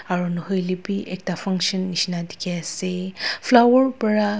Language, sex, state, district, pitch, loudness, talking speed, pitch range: Nagamese, female, Nagaland, Dimapur, 185 Hz, -22 LUFS, 150 wpm, 180-210 Hz